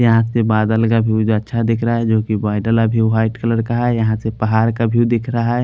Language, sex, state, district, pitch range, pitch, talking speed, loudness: Hindi, male, Haryana, Charkhi Dadri, 110-115 Hz, 115 Hz, 265 wpm, -16 LUFS